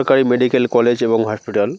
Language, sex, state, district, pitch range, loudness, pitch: Bengali, male, West Bengal, North 24 Parganas, 115-125 Hz, -16 LUFS, 120 Hz